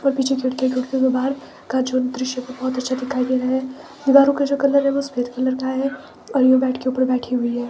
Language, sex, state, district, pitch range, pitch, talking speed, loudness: Hindi, female, Himachal Pradesh, Shimla, 255-275 Hz, 260 Hz, 280 wpm, -20 LUFS